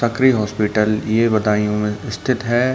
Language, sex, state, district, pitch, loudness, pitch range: Hindi, male, Uttar Pradesh, Budaun, 110 Hz, -18 LUFS, 105-120 Hz